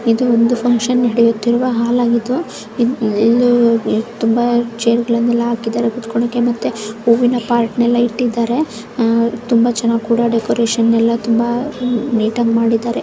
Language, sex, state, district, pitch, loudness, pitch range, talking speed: Kannada, female, Karnataka, Chamarajanagar, 235 Hz, -15 LUFS, 230-240 Hz, 95 wpm